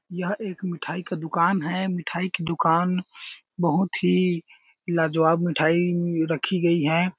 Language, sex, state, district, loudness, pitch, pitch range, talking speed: Hindi, male, Chhattisgarh, Balrampur, -24 LUFS, 175 Hz, 165-180 Hz, 135 wpm